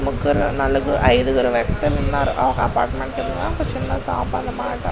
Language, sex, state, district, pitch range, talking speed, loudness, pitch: Telugu, female, Andhra Pradesh, Guntur, 125-140 Hz, 145 wpm, -20 LUFS, 135 Hz